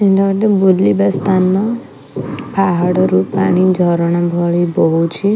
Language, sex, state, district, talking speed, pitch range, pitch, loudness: Odia, female, Odisha, Khordha, 100 wpm, 170-195 Hz, 180 Hz, -14 LUFS